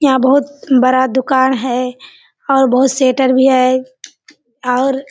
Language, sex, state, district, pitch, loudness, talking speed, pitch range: Hindi, female, Bihar, Kishanganj, 260 Hz, -13 LUFS, 140 wpm, 255-270 Hz